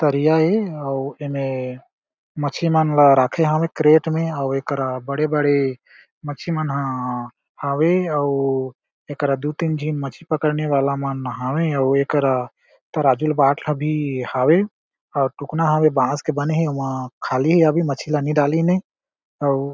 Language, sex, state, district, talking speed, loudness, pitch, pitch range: Chhattisgarhi, male, Chhattisgarh, Jashpur, 155 wpm, -20 LUFS, 145 Hz, 135-155 Hz